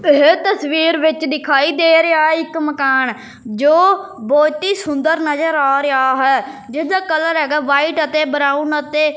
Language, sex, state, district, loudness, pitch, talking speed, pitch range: Punjabi, male, Punjab, Fazilka, -15 LUFS, 300 Hz, 165 wpm, 280-320 Hz